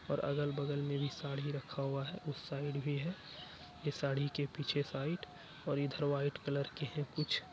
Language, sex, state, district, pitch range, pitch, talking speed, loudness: Hindi, male, Bihar, Araria, 140-145 Hz, 145 Hz, 190 wpm, -39 LUFS